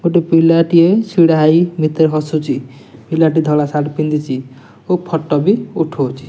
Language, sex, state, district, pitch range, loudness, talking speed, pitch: Odia, male, Odisha, Nuapada, 150-170 Hz, -14 LUFS, 125 wpm, 155 Hz